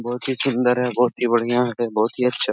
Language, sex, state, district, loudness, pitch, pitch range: Hindi, male, Jharkhand, Sahebganj, -20 LUFS, 125 Hz, 120-125 Hz